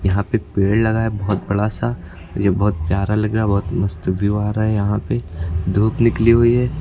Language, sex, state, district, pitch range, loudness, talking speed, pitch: Hindi, male, Uttar Pradesh, Lucknow, 95-110 Hz, -18 LUFS, 230 wpm, 105 Hz